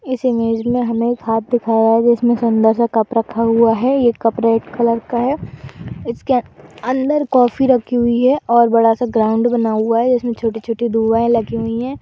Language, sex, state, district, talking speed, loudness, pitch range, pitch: Hindi, female, Uttar Pradesh, Budaun, 200 wpm, -16 LUFS, 225-245 Hz, 235 Hz